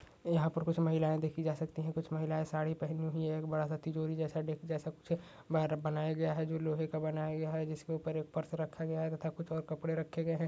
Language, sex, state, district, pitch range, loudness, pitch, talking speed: Hindi, male, Uttar Pradesh, Budaun, 155-160 Hz, -37 LUFS, 160 Hz, 265 wpm